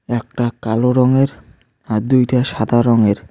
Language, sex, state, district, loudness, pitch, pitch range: Bengali, male, West Bengal, Cooch Behar, -16 LUFS, 120 Hz, 110-125 Hz